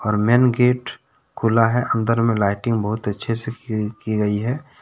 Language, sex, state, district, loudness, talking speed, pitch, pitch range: Hindi, male, Jharkhand, Deoghar, -20 LUFS, 175 wpm, 115 Hz, 105-120 Hz